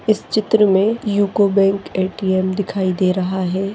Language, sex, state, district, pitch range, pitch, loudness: Hindi, female, Maharashtra, Aurangabad, 185-205 Hz, 195 Hz, -17 LUFS